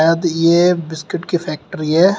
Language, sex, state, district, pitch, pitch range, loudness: Hindi, male, Uttar Pradesh, Shamli, 165 Hz, 160-175 Hz, -17 LUFS